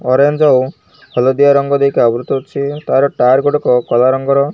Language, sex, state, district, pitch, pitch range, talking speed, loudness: Odia, male, Odisha, Malkangiri, 140 Hz, 130-140 Hz, 145 wpm, -13 LUFS